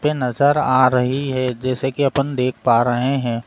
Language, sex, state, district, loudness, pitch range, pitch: Hindi, male, Uttar Pradesh, Etah, -18 LUFS, 125-140 Hz, 130 Hz